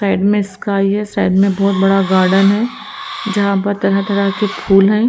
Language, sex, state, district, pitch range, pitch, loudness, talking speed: Hindi, female, Haryana, Rohtak, 195-210 Hz, 200 Hz, -14 LUFS, 190 wpm